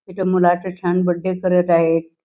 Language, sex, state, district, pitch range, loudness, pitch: Marathi, female, Karnataka, Belgaum, 170-185 Hz, -18 LUFS, 180 Hz